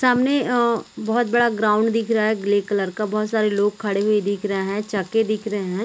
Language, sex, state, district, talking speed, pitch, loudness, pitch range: Hindi, female, Chhattisgarh, Korba, 235 wpm, 215 Hz, -21 LUFS, 205-225 Hz